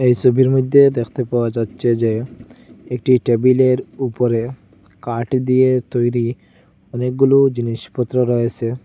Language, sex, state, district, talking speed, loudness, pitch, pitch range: Bengali, male, Assam, Hailakandi, 110 wpm, -17 LUFS, 125 Hz, 115-130 Hz